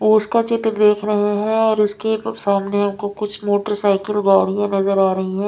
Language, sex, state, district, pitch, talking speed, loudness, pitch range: Hindi, female, Maharashtra, Mumbai Suburban, 205 Hz, 195 wpm, -18 LUFS, 200-215 Hz